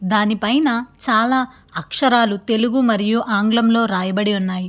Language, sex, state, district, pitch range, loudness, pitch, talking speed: Telugu, female, Andhra Pradesh, Krishna, 205-240 Hz, -17 LUFS, 225 Hz, 115 wpm